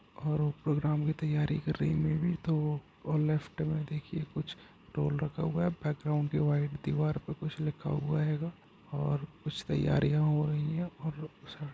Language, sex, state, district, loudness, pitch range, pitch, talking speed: Hindi, male, Bihar, Gopalganj, -33 LUFS, 150-155 Hz, 155 Hz, 195 wpm